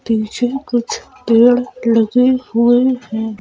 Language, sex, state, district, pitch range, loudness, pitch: Hindi, female, Madhya Pradesh, Bhopal, 225-250 Hz, -15 LUFS, 240 Hz